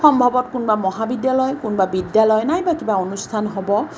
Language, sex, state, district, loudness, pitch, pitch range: Assamese, female, Assam, Kamrup Metropolitan, -19 LUFS, 225 Hz, 205-260 Hz